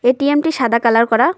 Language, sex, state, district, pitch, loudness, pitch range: Bengali, female, West Bengal, Cooch Behar, 245 Hz, -15 LUFS, 235-290 Hz